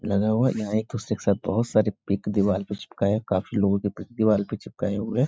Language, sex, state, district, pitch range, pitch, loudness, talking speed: Hindi, male, Bihar, East Champaran, 100-110 Hz, 105 Hz, -25 LUFS, 260 wpm